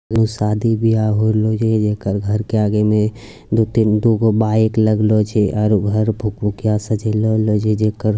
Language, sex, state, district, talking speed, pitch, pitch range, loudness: Angika, male, Bihar, Bhagalpur, 170 wpm, 110 Hz, 105-110 Hz, -17 LUFS